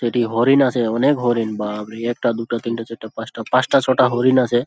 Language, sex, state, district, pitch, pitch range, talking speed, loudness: Bengali, male, West Bengal, Dakshin Dinajpur, 120 Hz, 115-130 Hz, 220 wpm, -18 LUFS